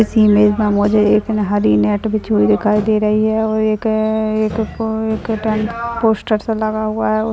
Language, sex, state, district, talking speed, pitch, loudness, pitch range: Hindi, male, Uttarakhand, Tehri Garhwal, 165 wpm, 215 Hz, -16 LUFS, 210-220 Hz